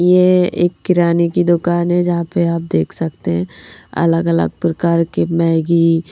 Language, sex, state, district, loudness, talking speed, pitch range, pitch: Hindi, female, Madhya Pradesh, Bhopal, -15 LUFS, 155 wpm, 165-175 Hz, 170 Hz